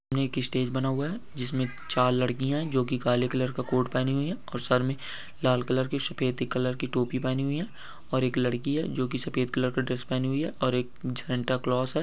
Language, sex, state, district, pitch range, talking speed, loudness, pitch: Hindi, male, West Bengal, Dakshin Dinajpur, 125-135 Hz, 240 wpm, -28 LUFS, 130 Hz